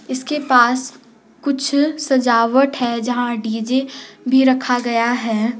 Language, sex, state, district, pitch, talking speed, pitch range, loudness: Hindi, female, Jharkhand, Garhwa, 250 Hz, 120 wpm, 235-270 Hz, -17 LUFS